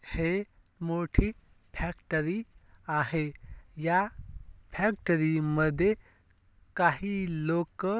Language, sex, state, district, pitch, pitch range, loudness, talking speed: Marathi, male, Maharashtra, Dhule, 170 Hz, 155-190 Hz, -30 LUFS, 75 wpm